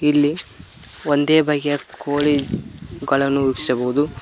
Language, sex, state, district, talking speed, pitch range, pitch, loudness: Kannada, male, Karnataka, Koppal, 85 wpm, 135-150 Hz, 145 Hz, -19 LUFS